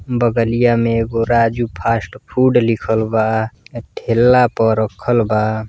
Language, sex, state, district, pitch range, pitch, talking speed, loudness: Bhojpuri, male, Uttar Pradesh, Deoria, 110-120 Hz, 115 Hz, 135 wpm, -16 LUFS